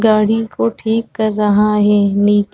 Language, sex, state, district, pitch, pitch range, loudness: Hindi, female, Chhattisgarh, Rajnandgaon, 210 Hz, 205-220 Hz, -14 LUFS